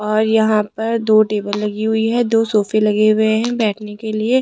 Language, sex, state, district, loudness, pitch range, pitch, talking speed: Hindi, female, Rajasthan, Jaipur, -16 LUFS, 210-225 Hz, 215 Hz, 215 wpm